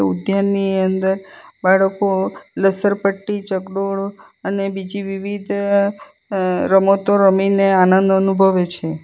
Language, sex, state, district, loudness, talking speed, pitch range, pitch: Gujarati, female, Gujarat, Valsad, -17 LUFS, 95 wpm, 190-200 Hz, 195 Hz